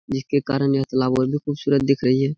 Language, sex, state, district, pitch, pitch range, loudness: Hindi, male, Bihar, Saran, 135 Hz, 135-140 Hz, -21 LUFS